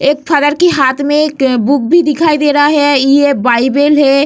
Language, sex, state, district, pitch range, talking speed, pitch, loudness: Hindi, female, Bihar, Vaishali, 270-295 Hz, 210 wpm, 285 Hz, -10 LUFS